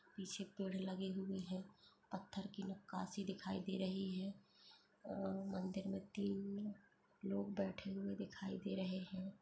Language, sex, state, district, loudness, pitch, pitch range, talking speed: Hindi, female, Bihar, East Champaran, -46 LUFS, 195 Hz, 190-200 Hz, 145 wpm